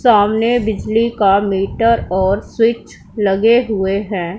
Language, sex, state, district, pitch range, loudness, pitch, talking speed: Hindi, female, Punjab, Pathankot, 195-230 Hz, -15 LUFS, 210 Hz, 125 wpm